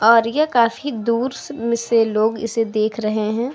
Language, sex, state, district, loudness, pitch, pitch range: Hindi, female, Uttar Pradesh, Hamirpur, -19 LUFS, 230 Hz, 220-240 Hz